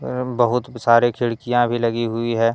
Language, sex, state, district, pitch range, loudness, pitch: Hindi, male, Jharkhand, Deoghar, 115-120 Hz, -19 LUFS, 120 Hz